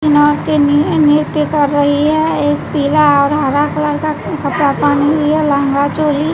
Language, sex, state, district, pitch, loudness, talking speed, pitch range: Hindi, female, Bihar, West Champaran, 290 Hz, -13 LUFS, 160 wpm, 280-300 Hz